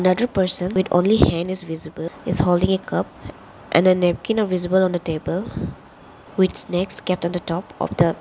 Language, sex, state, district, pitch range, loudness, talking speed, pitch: English, female, Arunachal Pradesh, Lower Dibang Valley, 170-185 Hz, -20 LUFS, 210 wpm, 180 Hz